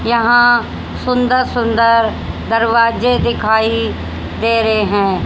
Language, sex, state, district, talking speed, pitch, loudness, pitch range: Hindi, female, Haryana, Rohtak, 90 wpm, 230 Hz, -14 LUFS, 225-240 Hz